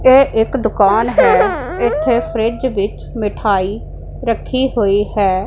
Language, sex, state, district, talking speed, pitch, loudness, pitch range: Punjabi, female, Punjab, Pathankot, 120 wpm, 220 Hz, -15 LUFS, 200-235 Hz